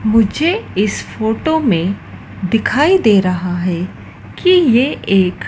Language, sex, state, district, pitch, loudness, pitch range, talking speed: Hindi, female, Madhya Pradesh, Dhar, 220 Hz, -15 LUFS, 185-285 Hz, 120 wpm